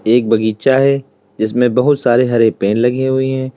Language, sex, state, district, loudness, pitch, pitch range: Hindi, male, Uttar Pradesh, Lalitpur, -14 LUFS, 125 Hz, 115-130 Hz